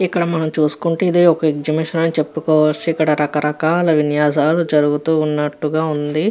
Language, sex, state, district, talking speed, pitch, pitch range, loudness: Telugu, female, Andhra Pradesh, Guntur, 140 wpm, 155 Hz, 150-165 Hz, -17 LUFS